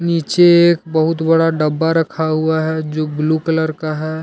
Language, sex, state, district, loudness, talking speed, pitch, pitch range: Hindi, male, Jharkhand, Deoghar, -15 LUFS, 185 wpm, 160 Hz, 155-165 Hz